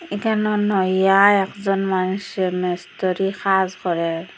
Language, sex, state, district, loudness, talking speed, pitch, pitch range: Bengali, female, Assam, Hailakandi, -20 LUFS, 95 wpm, 190 Hz, 185-200 Hz